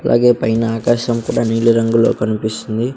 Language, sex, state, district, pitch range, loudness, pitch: Telugu, male, Andhra Pradesh, Sri Satya Sai, 110-120 Hz, -15 LUFS, 115 Hz